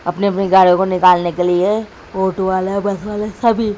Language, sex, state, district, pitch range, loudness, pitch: Hindi, female, Bihar, Saran, 185-205 Hz, -15 LUFS, 190 Hz